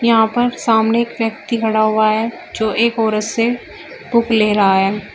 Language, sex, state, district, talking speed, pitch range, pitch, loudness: Hindi, female, Uttar Pradesh, Shamli, 185 wpm, 215-235 Hz, 225 Hz, -16 LUFS